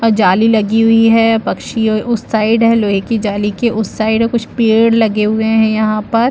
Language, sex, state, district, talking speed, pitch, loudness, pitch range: Hindi, female, Chhattisgarh, Bilaspur, 210 wpm, 225 Hz, -13 LUFS, 215-230 Hz